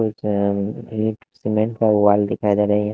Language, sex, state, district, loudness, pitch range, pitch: Hindi, male, Haryana, Jhajjar, -20 LUFS, 105-110 Hz, 105 Hz